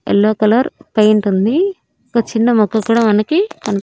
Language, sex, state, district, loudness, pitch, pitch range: Telugu, female, Andhra Pradesh, Annamaya, -14 LUFS, 220 Hz, 210-240 Hz